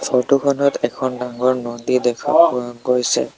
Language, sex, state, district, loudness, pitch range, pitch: Assamese, male, Assam, Sonitpur, -18 LUFS, 125-135 Hz, 125 Hz